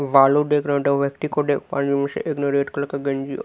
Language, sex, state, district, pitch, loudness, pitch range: Hindi, male, Haryana, Rohtak, 140 Hz, -21 LUFS, 140-145 Hz